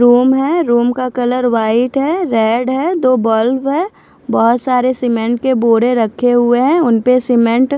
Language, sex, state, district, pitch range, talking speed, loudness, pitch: Hindi, female, Punjab, Fazilka, 235-260 Hz, 175 wpm, -13 LUFS, 250 Hz